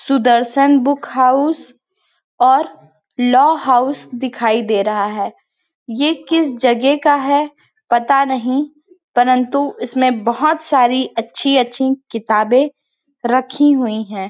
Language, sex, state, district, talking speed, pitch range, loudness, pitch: Hindi, female, Chhattisgarh, Balrampur, 115 wpm, 240-285 Hz, -15 LUFS, 260 Hz